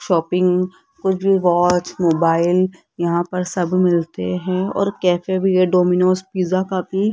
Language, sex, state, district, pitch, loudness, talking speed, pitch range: Hindi, female, Rajasthan, Jaipur, 180 Hz, -18 LUFS, 145 wpm, 175-185 Hz